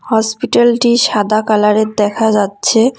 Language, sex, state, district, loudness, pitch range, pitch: Bengali, female, West Bengal, Cooch Behar, -12 LUFS, 210-235 Hz, 220 Hz